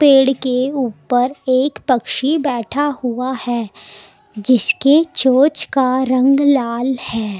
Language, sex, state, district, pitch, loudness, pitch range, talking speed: Hindi, female, Delhi, New Delhi, 260 Hz, -16 LUFS, 245-275 Hz, 115 wpm